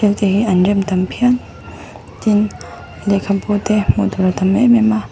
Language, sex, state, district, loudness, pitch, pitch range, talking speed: Mizo, female, Mizoram, Aizawl, -15 LUFS, 205 Hz, 195-215 Hz, 175 wpm